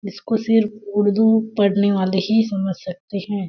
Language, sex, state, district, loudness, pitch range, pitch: Hindi, female, Chhattisgarh, Sarguja, -19 LUFS, 195-220 Hz, 205 Hz